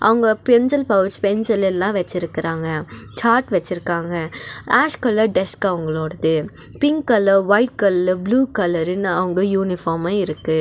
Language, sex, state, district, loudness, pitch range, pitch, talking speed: Tamil, female, Tamil Nadu, Nilgiris, -18 LUFS, 170-220 Hz, 190 Hz, 120 wpm